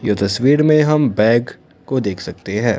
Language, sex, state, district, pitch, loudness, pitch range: Hindi, male, Assam, Kamrup Metropolitan, 125 Hz, -16 LUFS, 105-150 Hz